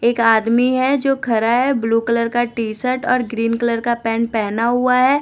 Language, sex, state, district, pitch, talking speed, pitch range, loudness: Hindi, female, Bihar, West Champaran, 235 Hz, 220 wpm, 230-255 Hz, -17 LUFS